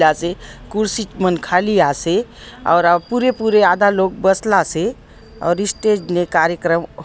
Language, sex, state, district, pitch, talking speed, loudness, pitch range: Halbi, female, Chhattisgarh, Bastar, 180 Hz, 120 wpm, -17 LUFS, 170-210 Hz